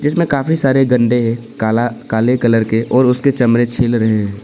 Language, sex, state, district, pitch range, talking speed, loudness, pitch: Hindi, male, Arunachal Pradesh, Papum Pare, 115-130 Hz, 205 wpm, -14 LUFS, 120 Hz